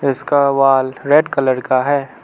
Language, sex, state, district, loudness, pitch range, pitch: Hindi, male, Arunachal Pradesh, Lower Dibang Valley, -15 LUFS, 130-140 Hz, 135 Hz